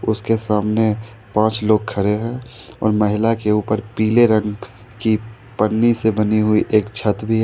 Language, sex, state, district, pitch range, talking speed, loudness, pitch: Hindi, male, Jharkhand, Ranchi, 105-115 Hz, 170 wpm, -18 LUFS, 110 Hz